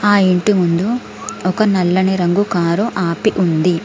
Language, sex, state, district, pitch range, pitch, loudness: Telugu, female, Telangana, Komaram Bheem, 175-205 Hz, 185 Hz, -15 LUFS